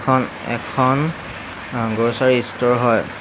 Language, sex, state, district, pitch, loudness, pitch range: Assamese, male, Assam, Hailakandi, 125 Hz, -19 LUFS, 115-130 Hz